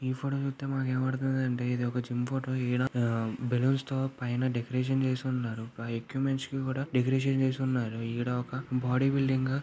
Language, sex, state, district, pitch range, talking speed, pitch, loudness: Telugu, male, Andhra Pradesh, Anantapur, 125-135 Hz, 155 wpm, 130 Hz, -31 LUFS